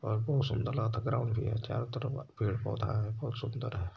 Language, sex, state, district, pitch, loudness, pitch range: Hindi, male, Uttar Pradesh, Varanasi, 120 Hz, -34 LUFS, 110-125 Hz